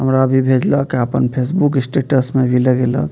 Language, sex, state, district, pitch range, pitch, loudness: Maithili, male, Bihar, Purnia, 125-135 Hz, 130 Hz, -15 LUFS